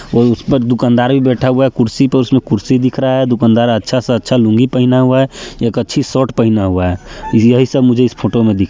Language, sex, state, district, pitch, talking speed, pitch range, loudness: Hindi, male, Bihar, Sitamarhi, 125 Hz, 250 wpm, 115-130 Hz, -12 LUFS